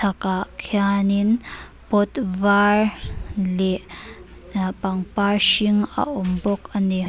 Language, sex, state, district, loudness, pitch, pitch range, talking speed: Mizo, female, Mizoram, Aizawl, -19 LUFS, 200 Hz, 190-205 Hz, 110 wpm